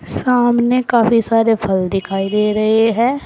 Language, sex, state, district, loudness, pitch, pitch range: Hindi, female, Uttar Pradesh, Saharanpur, -15 LUFS, 225 Hz, 210-240 Hz